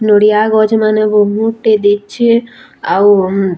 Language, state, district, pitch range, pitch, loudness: Sambalpuri, Odisha, Sambalpur, 205-220 Hz, 215 Hz, -11 LUFS